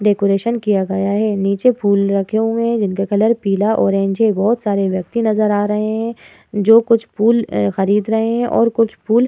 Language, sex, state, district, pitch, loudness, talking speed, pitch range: Hindi, female, Uttar Pradesh, Muzaffarnagar, 215 Hz, -16 LUFS, 205 wpm, 200-230 Hz